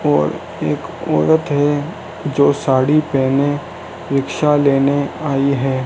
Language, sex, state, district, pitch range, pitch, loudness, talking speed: Hindi, male, Rajasthan, Bikaner, 135-145 Hz, 140 Hz, -17 LUFS, 115 wpm